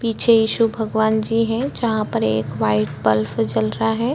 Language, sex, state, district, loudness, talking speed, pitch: Hindi, female, Chhattisgarh, Korba, -19 LUFS, 190 wpm, 220 Hz